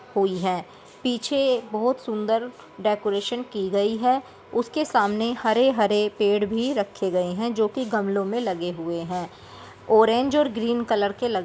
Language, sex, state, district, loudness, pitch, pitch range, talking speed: Hindi, female, Bihar, Begusarai, -24 LUFS, 220 Hz, 200-245 Hz, 155 wpm